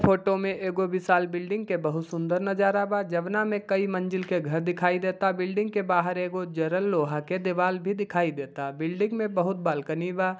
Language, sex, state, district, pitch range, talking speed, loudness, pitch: Bhojpuri, male, Bihar, Gopalganj, 175-195 Hz, 195 wpm, -27 LUFS, 185 Hz